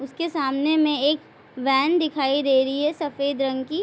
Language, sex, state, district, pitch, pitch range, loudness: Hindi, female, Bihar, Vaishali, 285 Hz, 270-305 Hz, -22 LUFS